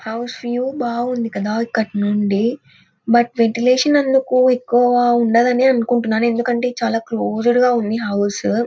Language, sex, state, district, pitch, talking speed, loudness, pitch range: Telugu, female, Andhra Pradesh, Anantapur, 240 Hz, 130 wpm, -17 LUFS, 225-245 Hz